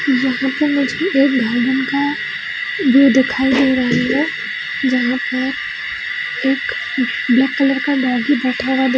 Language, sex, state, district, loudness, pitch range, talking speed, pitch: Hindi, female, Bihar, Jahanabad, -16 LUFS, 250-280 Hz, 135 wpm, 275 Hz